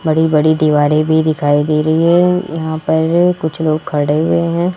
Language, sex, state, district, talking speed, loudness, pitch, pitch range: Hindi, male, Rajasthan, Jaipur, 190 wpm, -13 LUFS, 160 Hz, 155-170 Hz